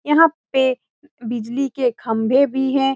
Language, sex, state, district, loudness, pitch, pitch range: Hindi, female, Bihar, Saran, -19 LUFS, 265 Hz, 240-275 Hz